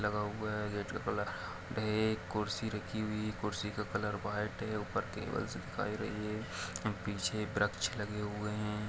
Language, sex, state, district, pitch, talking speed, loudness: Hindi, male, Chhattisgarh, Kabirdham, 105 Hz, 150 wpm, -37 LUFS